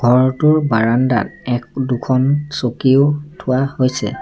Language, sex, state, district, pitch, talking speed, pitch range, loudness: Assamese, male, Assam, Sonitpur, 130 Hz, 100 wpm, 125-145 Hz, -16 LUFS